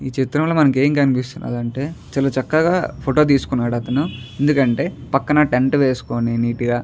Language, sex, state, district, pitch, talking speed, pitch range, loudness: Telugu, male, Andhra Pradesh, Chittoor, 135 Hz, 140 wpm, 125-145 Hz, -18 LUFS